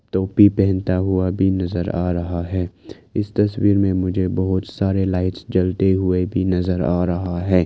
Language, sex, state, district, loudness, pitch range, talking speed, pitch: Hindi, male, Arunachal Pradesh, Lower Dibang Valley, -19 LUFS, 90-95 Hz, 170 wpm, 95 Hz